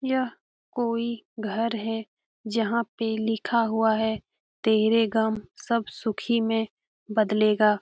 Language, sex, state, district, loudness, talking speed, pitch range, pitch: Hindi, female, Bihar, Jamui, -26 LUFS, 115 wpm, 220-230 Hz, 225 Hz